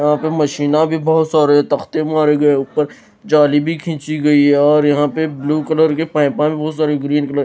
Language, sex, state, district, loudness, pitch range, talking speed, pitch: Hindi, female, Punjab, Fazilka, -15 LUFS, 145-155 Hz, 225 wpm, 150 Hz